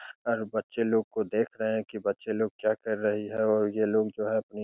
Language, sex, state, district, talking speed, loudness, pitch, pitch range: Hindi, male, Bihar, Begusarai, 270 wpm, -29 LUFS, 110 Hz, 105-110 Hz